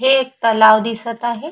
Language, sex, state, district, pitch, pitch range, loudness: Marathi, female, Maharashtra, Chandrapur, 235 Hz, 225-260 Hz, -15 LUFS